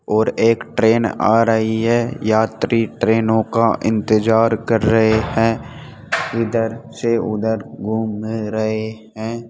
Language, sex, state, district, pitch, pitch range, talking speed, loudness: Hindi, male, Rajasthan, Jaipur, 110 Hz, 110-115 Hz, 120 wpm, -18 LUFS